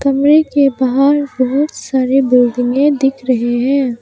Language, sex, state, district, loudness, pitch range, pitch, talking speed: Hindi, female, Arunachal Pradesh, Papum Pare, -13 LUFS, 255-280 Hz, 270 Hz, 135 wpm